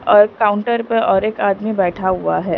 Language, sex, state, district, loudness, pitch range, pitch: Hindi, female, Punjab, Pathankot, -16 LUFS, 190-220 Hz, 205 Hz